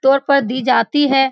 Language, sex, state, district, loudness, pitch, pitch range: Hindi, female, Bihar, Saran, -15 LUFS, 270 Hz, 265-280 Hz